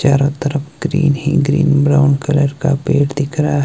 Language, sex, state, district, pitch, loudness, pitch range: Hindi, male, Himachal Pradesh, Shimla, 145 Hz, -15 LUFS, 140-150 Hz